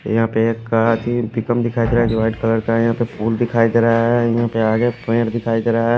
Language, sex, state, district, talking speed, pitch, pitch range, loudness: Hindi, male, Odisha, Khordha, 260 wpm, 115 Hz, 115-120 Hz, -17 LUFS